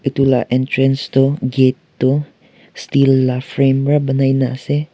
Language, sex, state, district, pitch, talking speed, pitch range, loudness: Nagamese, male, Nagaland, Kohima, 135 Hz, 145 wpm, 130-140 Hz, -16 LUFS